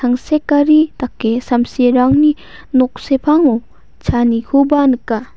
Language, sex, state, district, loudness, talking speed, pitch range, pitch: Garo, female, Meghalaya, West Garo Hills, -14 LUFS, 80 wpm, 245-295 Hz, 255 Hz